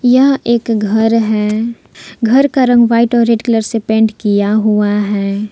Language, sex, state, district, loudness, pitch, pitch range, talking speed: Hindi, female, Jharkhand, Palamu, -12 LUFS, 225 Hz, 210-235 Hz, 175 wpm